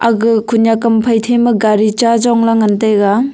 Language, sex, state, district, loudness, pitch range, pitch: Wancho, female, Arunachal Pradesh, Longding, -12 LUFS, 215-235 Hz, 225 Hz